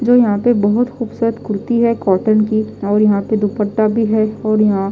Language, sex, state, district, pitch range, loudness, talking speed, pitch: Hindi, female, Delhi, New Delhi, 205-230 Hz, -15 LUFS, 220 wpm, 215 Hz